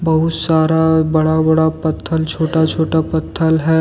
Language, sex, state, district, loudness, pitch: Hindi, male, Jharkhand, Deoghar, -15 LUFS, 160 Hz